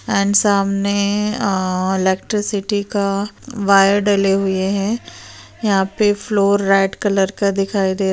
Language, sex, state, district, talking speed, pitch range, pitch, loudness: Hindi, female, Bihar, Darbhanga, 125 wpm, 195-205 Hz, 200 Hz, -17 LUFS